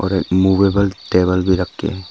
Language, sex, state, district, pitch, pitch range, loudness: Hindi, male, Arunachal Pradesh, Papum Pare, 95 Hz, 90-95 Hz, -16 LUFS